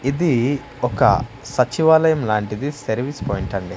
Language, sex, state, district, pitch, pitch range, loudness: Telugu, male, Andhra Pradesh, Manyam, 125 Hz, 110-145 Hz, -19 LUFS